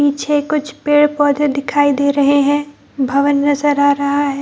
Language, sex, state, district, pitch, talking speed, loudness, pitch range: Hindi, female, Bihar, Gaya, 285 Hz, 165 wpm, -15 LUFS, 280-290 Hz